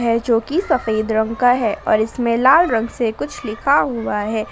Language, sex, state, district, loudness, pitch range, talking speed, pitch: Hindi, female, Jharkhand, Garhwa, -17 LUFS, 220-250 Hz, 185 wpm, 230 Hz